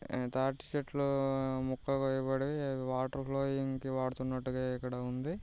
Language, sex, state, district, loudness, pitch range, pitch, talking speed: Telugu, male, Andhra Pradesh, Visakhapatnam, -35 LUFS, 130-135 Hz, 135 Hz, 110 wpm